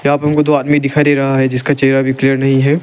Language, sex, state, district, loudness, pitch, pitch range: Hindi, male, Arunachal Pradesh, Lower Dibang Valley, -13 LUFS, 140 Hz, 135-145 Hz